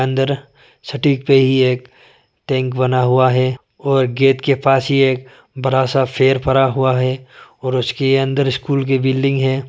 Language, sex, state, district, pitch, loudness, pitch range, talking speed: Hindi, male, Arunachal Pradesh, Lower Dibang Valley, 130 Hz, -16 LUFS, 130-135 Hz, 175 wpm